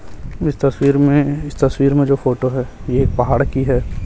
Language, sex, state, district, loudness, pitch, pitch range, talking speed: Hindi, male, Chhattisgarh, Raipur, -17 LUFS, 135 Hz, 130-140 Hz, 205 wpm